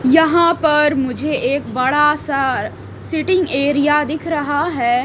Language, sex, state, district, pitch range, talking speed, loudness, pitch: Hindi, female, Chhattisgarh, Raipur, 275-310 Hz, 130 wpm, -16 LUFS, 295 Hz